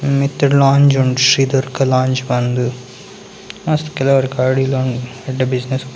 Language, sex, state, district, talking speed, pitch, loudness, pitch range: Tulu, male, Karnataka, Dakshina Kannada, 120 wpm, 135 Hz, -15 LUFS, 130-140 Hz